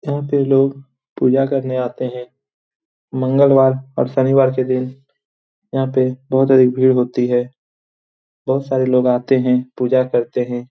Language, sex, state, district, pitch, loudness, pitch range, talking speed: Hindi, male, Bihar, Jamui, 130 Hz, -16 LUFS, 125-135 Hz, 150 wpm